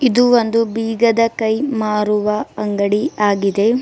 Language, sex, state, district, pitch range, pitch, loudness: Kannada, female, Karnataka, Bidar, 210-230 Hz, 220 Hz, -16 LUFS